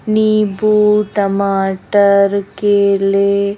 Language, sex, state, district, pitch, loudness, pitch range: Hindi, female, Madhya Pradesh, Bhopal, 200 Hz, -13 LUFS, 200-210 Hz